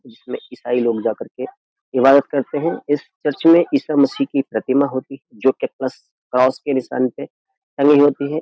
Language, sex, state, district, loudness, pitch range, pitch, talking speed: Hindi, male, Uttar Pradesh, Jyotiba Phule Nagar, -18 LUFS, 130-150 Hz, 140 Hz, 190 wpm